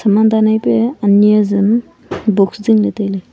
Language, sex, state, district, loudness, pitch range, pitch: Wancho, female, Arunachal Pradesh, Longding, -13 LUFS, 205-220 Hz, 210 Hz